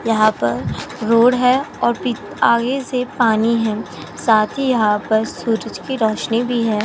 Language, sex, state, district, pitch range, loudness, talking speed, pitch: Hindi, female, Uttar Pradesh, Jyotiba Phule Nagar, 220-250 Hz, -18 LUFS, 160 wpm, 230 Hz